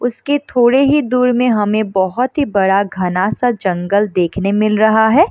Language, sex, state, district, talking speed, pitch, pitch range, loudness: Hindi, female, Bihar, Madhepura, 170 wpm, 215 Hz, 195-250 Hz, -14 LUFS